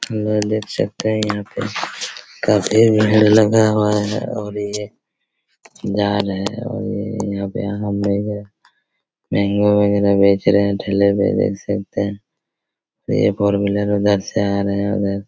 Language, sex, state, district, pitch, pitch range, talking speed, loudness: Hindi, male, Chhattisgarh, Raigarh, 100 Hz, 100-105 Hz, 160 wpm, -18 LUFS